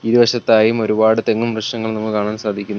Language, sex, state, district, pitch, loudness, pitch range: Malayalam, male, Kerala, Kollam, 110 Hz, -16 LUFS, 105-115 Hz